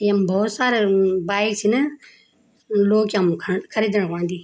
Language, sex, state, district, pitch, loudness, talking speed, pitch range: Garhwali, female, Uttarakhand, Tehri Garhwal, 205 Hz, -20 LUFS, 160 wpm, 190-215 Hz